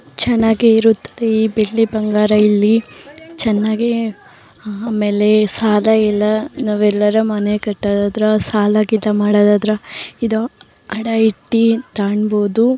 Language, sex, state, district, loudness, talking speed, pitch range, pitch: Kannada, female, Karnataka, Mysore, -15 LUFS, 95 wpm, 210-225 Hz, 215 Hz